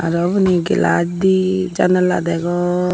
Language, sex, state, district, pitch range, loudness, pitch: Chakma, female, Tripura, Unakoti, 170-185 Hz, -16 LUFS, 180 Hz